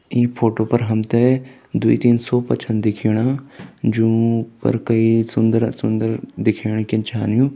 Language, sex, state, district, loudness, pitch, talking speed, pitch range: Hindi, male, Uttarakhand, Tehri Garhwal, -18 LUFS, 115 Hz, 125 wpm, 110-120 Hz